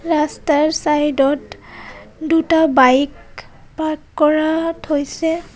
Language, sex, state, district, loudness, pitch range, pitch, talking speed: Assamese, female, Assam, Kamrup Metropolitan, -17 LUFS, 295-325 Hz, 310 Hz, 85 wpm